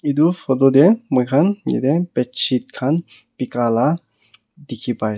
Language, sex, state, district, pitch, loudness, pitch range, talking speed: Nagamese, male, Nagaland, Kohima, 135 Hz, -18 LUFS, 120-155 Hz, 140 wpm